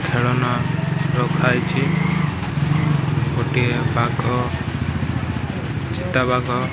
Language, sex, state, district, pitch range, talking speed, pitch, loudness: Odia, male, Odisha, Malkangiri, 125-155 Hz, 55 wpm, 140 Hz, -20 LUFS